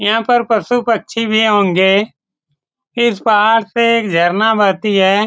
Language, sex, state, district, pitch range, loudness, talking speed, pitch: Hindi, male, Bihar, Saran, 190-230 Hz, -13 LUFS, 150 wpm, 215 Hz